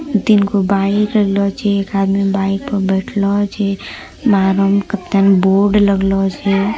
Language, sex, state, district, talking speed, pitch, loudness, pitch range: Angika, female, Bihar, Bhagalpur, 125 wpm, 200 Hz, -15 LUFS, 195-205 Hz